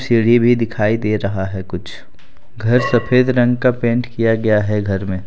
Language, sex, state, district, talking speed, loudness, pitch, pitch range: Hindi, male, Jharkhand, Deoghar, 195 wpm, -16 LUFS, 115 Hz, 105-120 Hz